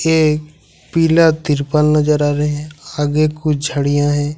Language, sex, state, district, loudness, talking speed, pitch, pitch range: Hindi, male, Jharkhand, Ranchi, -15 LUFS, 150 wpm, 150 Hz, 145-155 Hz